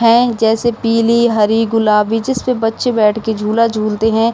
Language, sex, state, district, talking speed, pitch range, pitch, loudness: Hindi, female, Uttar Pradesh, Budaun, 165 wpm, 220-235 Hz, 225 Hz, -14 LUFS